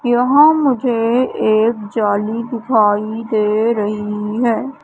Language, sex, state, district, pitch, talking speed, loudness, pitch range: Hindi, female, Madhya Pradesh, Katni, 225 Hz, 100 wpm, -16 LUFS, 215-245 Hz